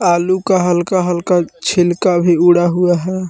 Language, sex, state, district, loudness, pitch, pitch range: Hindi, male, Jharkhand, Palamu, -14 LUFS, 175 Hz, 175-185 Hz